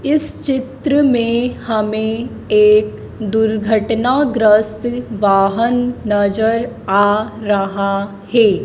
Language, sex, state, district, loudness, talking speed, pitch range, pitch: Hindi, female, Madhya Pradesh, Dhar, -15 LUFS, 75 wpm, 205-245 Hz, 220 Hz